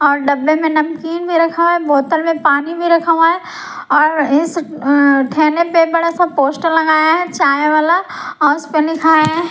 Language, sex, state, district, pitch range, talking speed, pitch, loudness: Hindi, female, Punjab, Pathankot, 300-335 Hz, 190 wpm, 320 Hz, -13 LUFS